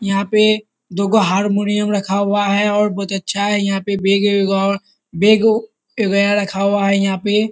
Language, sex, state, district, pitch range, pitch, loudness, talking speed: Hindi, male, Bihar, Kishanganj, 195-210 Hz, 200 Hz, -16 LUFS, 170 wpm